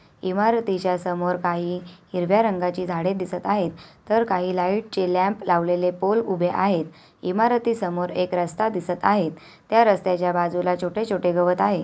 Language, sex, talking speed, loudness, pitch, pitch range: Awadhi, female, 145 wpm, -23 LUFS, 180 Hz, 175-195 Hz